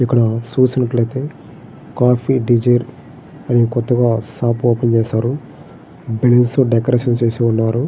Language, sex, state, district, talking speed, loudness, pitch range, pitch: Telugu, male, Andhra Pradesh, Srikakulam, 90 wpm, -16 LUFS, 115-125 Hz, 120 Hz